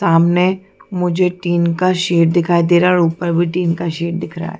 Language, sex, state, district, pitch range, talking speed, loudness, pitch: Hindi, female, Chhattisgarh, Bilaspur, 170-180 Hz, 235 wpm, -15 LUFS, 175 Hz